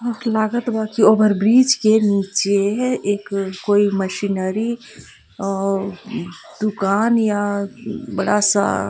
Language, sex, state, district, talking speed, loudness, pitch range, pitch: Bhojpuri, female, Jharkhand, Palamu, 100 wpm, -18 LUFS, 195-220 Hz, 205 Hz